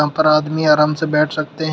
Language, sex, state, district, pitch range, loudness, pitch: Hindi, male, Uttar Pradesh, Shamli, 150-155 Hz, -16 LUFS, 155 Hz